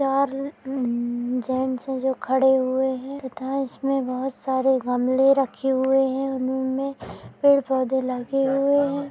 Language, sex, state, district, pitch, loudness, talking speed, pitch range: Hindi, female, Bihar, Gopalganj, 265 Hz, -23 LUFS, 140 wpm, 260-275 Hz